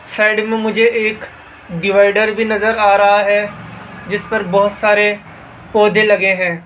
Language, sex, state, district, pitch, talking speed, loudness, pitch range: Hindi, male, Rajasthan, Jaipur, 205 Hz, 145 wpm, -13 LUFS, 200-215 Hz